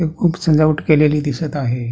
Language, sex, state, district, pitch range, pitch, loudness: Marathi, male, Maharashtra, Pune, 145-160 Hz, 155 Hz, -16 LUFS